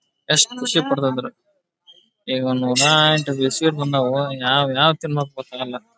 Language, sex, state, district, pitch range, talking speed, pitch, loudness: Kannada, male, Karnataka, Belgaum, 130-165 Hz, 120 wpm, 140 Hz, -18 LUFS